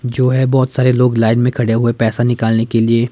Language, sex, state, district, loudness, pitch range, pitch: Hindi, male, Himachal Pradesh, Shimla, -14 LUFS, 115-125 Hz, 120 Hz